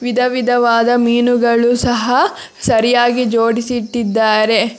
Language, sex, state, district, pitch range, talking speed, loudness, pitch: Kannada, female, Karnataka, Bangalore, 230-245 Hz, 65 wpm, -14 LUFS, 240 Hz